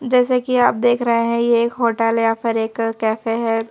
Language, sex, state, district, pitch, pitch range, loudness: Hindi, female, Madhya Pradesh, Bhopal, 230 Hz, 225-240 Hz, -18 LUFS